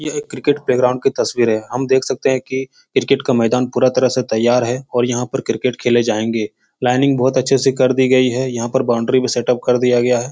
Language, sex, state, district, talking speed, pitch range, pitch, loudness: Hindi, male, Uttar Pradesh, Etah, 250 wpm, 120-130 Hz, 125 Hz, -16 LUFS